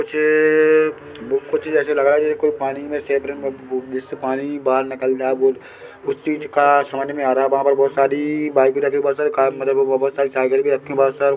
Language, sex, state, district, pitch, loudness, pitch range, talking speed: Hindi, male, Chhattisgarh, Bilaspur, 140 Hz, -18 LUFS, 135-150 Hz, 205 wpm